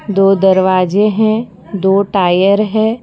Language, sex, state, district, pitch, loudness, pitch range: Hindi, female, Gujarat, Valsad, 195 Hz, -12 LUFS, 190-215 Hz